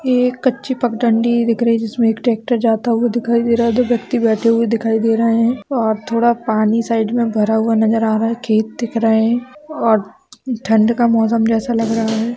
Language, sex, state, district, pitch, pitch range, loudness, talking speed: Hindi, female, Bihar, Gopalganj, 230 Hz, 225-240 Hz, -16 LUFS, 240 wpm